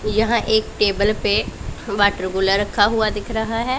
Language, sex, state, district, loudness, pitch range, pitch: Hindi, female, Punjab, Pathankot, -19 LUFS, 205-220 Hz, 215 Hz